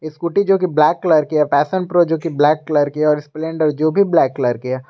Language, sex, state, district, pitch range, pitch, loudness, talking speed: Hindi, male, Jharkhand, Garhwa, 150-170 Hz, 155 Hz, -16 LUFS, 270 wpm